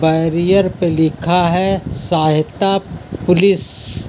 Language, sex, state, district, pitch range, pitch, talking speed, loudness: Hindi, male, Uttar Pradesh, Lucknow, 155-185 Hz, 170 Hz, 105 wpm, -15 LUFS